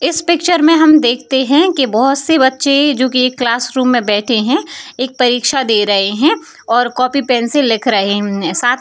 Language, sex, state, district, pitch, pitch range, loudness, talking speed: Hindi, female, Bihar, Jamui, 255 Hz, 240-285 Hz, -12 LUFS, 220 wpm